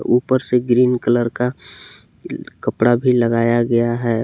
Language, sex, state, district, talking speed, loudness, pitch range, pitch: Hindi, male, Jharkhand, Palamu, 140 wpm, -17 LUFS, 115-125 Hz, 120 Hz